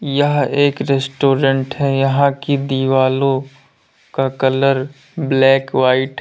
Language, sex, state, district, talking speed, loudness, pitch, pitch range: Hindi, male, Uttar Pradesh, Lalitpur, 115 wpm, -16 LUFS, 135 Hz, 135-140 Hz